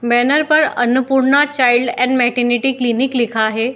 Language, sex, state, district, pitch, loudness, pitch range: Hindi, female, Bihar, Saharsa, 250 Hz, -14 LUFS, 240-265 Hz